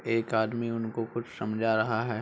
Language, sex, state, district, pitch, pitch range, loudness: Hindi, male, Uttar Pradesh, Budaun, 115 Hz, 110-115 Hz, -30 LUFS